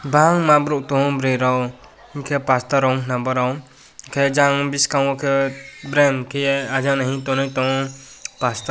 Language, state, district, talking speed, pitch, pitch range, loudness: Kokborok, Tripura, West Tripura, 165 wpm, 135 Hz, 130-140 Hz, -19 LUFS